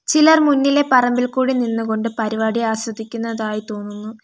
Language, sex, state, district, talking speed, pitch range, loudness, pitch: Malayalam, female, Kerala, Kollam, 115 wpm, 220-260 Hz, -18 LUFS, 230 Hz